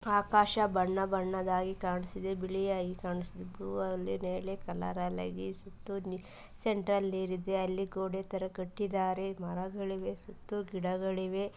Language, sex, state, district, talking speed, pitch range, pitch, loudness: Kannada, female, Karnataka, Mysore, 105 wpm, 180-195 Hz, 190 Hz, -35 LUFS